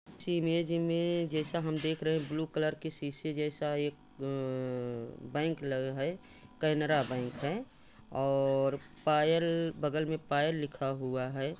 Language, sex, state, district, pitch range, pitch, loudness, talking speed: Hindi, male, Jharkhand, Sahebganj, 135-160 Hz, 150 Hz, -33 LUFS, 150 wpm